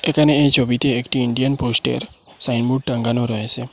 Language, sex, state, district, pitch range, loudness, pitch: Bengali, male, Assam, Hailakandi, 120-135 Hz, -18 LUFS, 125 Hz